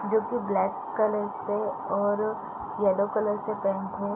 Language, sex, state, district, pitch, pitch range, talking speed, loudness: Hindi, female, Bihar, East Champaran, 205 Hz, 195-215 Hz, 160 wpm, -28 LUFS